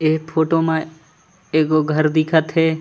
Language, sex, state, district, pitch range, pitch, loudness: Chhattisgarhi, male, Chhattisgarh, Raigarh, 155-160 Hz, 160 Hz, -18 LUFS